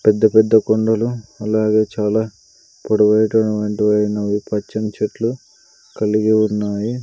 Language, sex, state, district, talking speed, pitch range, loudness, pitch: Telugu, male, Andhra Pradesh, Sri Satya Sai, 95 wpm, 105-110 Hz, -17 LUFS, 110 Hz